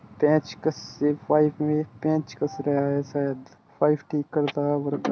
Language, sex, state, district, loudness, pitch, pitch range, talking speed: Hindi, male, Uttar Pradesh, Muzaffarnagar, -25 LUFS, 145 Hz, 140-150 Hz, 165 wpm